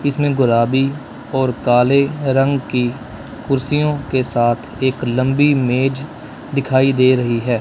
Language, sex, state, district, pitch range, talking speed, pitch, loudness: Hindi, male, Punjab, Kapurthala, 125-140 Hz, 125 wpm, 130 Hz, -16 LUFS